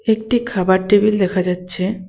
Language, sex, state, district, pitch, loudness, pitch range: Bengali, female, West Bengal, Cooch Behar, 190 Hz, -17 LUFS, 185-215 Hz